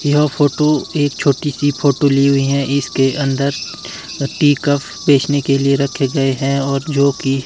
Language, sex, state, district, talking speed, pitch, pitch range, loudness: Hindi, male, Himachal Pradesh, Shimla, 185 wpm, 140 Hz, 135-145 Hz, -16 LUFS